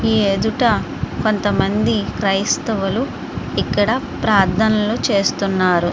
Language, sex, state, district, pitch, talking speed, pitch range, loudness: Telugu, female, Andhra Pradesh, Srikakulam, 210 Hz, 70 wpm, 195-220 Hz, -18 LUFS